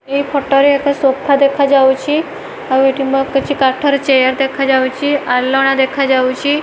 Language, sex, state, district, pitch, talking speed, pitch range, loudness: Odia, female, Odisha, Malkangiri, 275 Hz, 145 wpm, 265-285 Hz, -13 LUFS